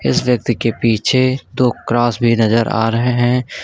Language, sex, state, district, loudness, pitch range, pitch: Hindi, male, Uttar Pradesh, Lucknow, -15 LUFS, 115-125 Hz, 120 Hz